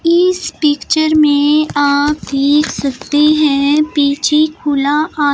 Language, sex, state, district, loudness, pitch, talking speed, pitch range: Hindi, female, Himachal Pradesh, Shimla, -13 LUFS, 295 Hz, 110 wpm, 285-310 Hz